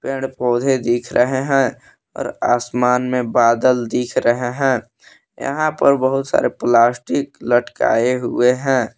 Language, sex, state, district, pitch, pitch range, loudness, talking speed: Hindi, male, Jharkhand, Palamu, 125 Hz, 120-135 Hz, -17 LUFS, 135 wpm